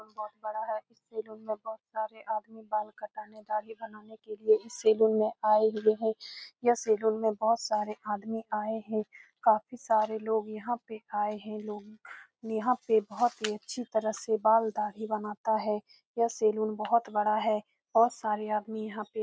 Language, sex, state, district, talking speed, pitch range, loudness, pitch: Hindi, female, Bihar, Saran, 185 wpm, 215-220 Hz, -30 LUFS, 220 Hz